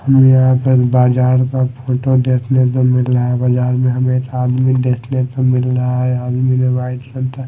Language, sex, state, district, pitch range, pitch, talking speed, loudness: Hindi, male, Odisha, Malkangiri, 125-130 Hz, 125 Hz, 200 wpm, -14 LUFS